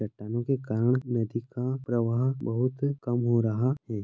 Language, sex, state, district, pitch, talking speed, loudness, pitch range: Hindi, male, Maharashtra, Sindhudurg, 120 Hz, 165 wpm, -28 LUFS, 115-130 Hz